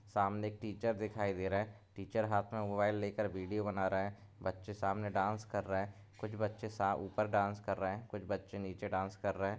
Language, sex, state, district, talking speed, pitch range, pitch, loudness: Hindi, male, Chhattisgarh, Korba, 235 wpm, 95-105 Hz, 100 Hz, -38 LUFS